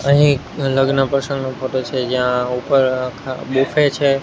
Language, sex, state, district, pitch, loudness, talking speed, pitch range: Gujarati, male, Gujarat, Gandhinagar, 135 Hz, -18 LUFS, 155 wpm, 130-140 Hz